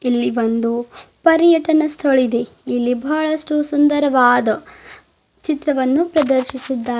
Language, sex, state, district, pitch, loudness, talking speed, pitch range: Kannada, female, Karnataka, Bidar, 270 Hz, -17 LUFS, 75 wpm, 245-305 Hz